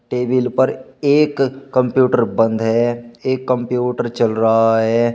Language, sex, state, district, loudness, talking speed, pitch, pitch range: Hindi, male, Uttar Pradesh, Shamli, -17 LUFS, 130 wpm, 125 Hz, 115-130 Hz